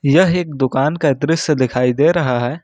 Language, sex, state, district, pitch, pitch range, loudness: Hindi, male, Jharkhand, Ranchi, 145 Hz, 130-165 Hz, -16 LUFS